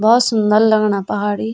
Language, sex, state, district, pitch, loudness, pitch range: Garhwali, female, Uttarakhand, Tehri Garhwal, 215 Hz, -15 LUFS, 205-220 Hz